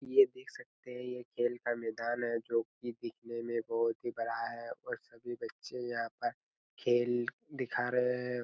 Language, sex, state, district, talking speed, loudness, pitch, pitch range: Hindi, male, Chhattisgarh, Raigarh, 180 wpm, -36 LUFS, 120 Hz, 115-125 Hz